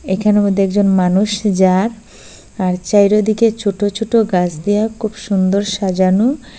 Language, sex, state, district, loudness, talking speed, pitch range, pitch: Bengali, female, Assam, Hailakandi, -15 LUFS, 125 wpm, 190-215 Hz, 205 Hz